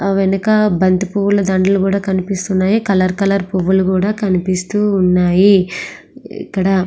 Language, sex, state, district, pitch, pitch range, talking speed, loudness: Telugu, female, Andhra Pradesh, Srikakulam, 195 Hz, 185-200 Hz, 115 wpm, -14 LUFS